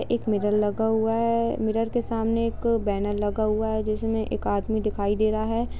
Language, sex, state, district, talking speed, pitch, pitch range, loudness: Hindi, female, Jharkhand, Jamtara, 205 wpm, 220 Hz, 210-230 Hz, -25 LUFS